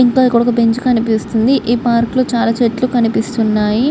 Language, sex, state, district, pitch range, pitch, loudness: Telugu, female, Andhra Pradesh, Guntur, 225-250 Hz, 235 Hz, -14 LUFS